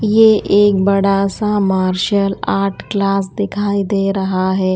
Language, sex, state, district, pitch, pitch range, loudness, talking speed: Hindi, female, Odisha, Malkangiri, 195 Hz, 190-205 Hz, -15 LUFS, 140 wpm